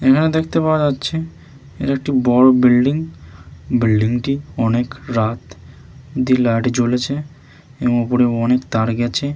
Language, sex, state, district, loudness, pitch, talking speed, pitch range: Bengali, male, West Bengal, Malda, -17 LUFS, 125 Hz, 135 wpm, 120-140 Hz